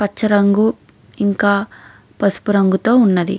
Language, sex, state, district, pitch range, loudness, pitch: Telugu, female, Andhra Pradesh, Krishna, 200-215 Hz, -15 LUFS, 205 Hz